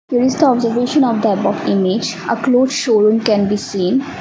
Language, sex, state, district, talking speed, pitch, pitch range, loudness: English, female, Assam, Kamrup Metropolitan, 200 wpm, 235 Hz, 210-260 Hz, -15 LUFS